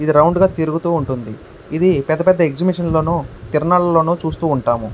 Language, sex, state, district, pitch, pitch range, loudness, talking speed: Telugu, male, Andhra Pradesh, Krishna, 160 Hz, 150-170 Hz, -16 LUFS, 120 wpm